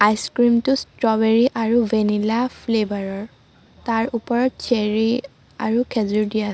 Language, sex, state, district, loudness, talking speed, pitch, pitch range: Assamese, female, Assam, Sonitpur, -20 LUFS, 130 wpm, 225 Hz, 215-240 Hz